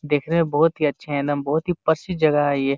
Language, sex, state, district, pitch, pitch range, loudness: Hindi, male, Jharkhand, Jamtara, 150 Hz, 145-160 Hz, -21 LUFS